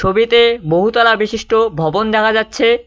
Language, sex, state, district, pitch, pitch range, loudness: Bengali, male, West Bengal, Cooch Behar, 225 Hz, 215-230 Hz, -13 LUFS